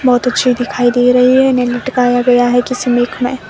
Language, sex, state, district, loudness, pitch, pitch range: Hindi, female, Himachal Pradesh, Shimla, -12 LUFS, 245 Hz, 245-250 Hz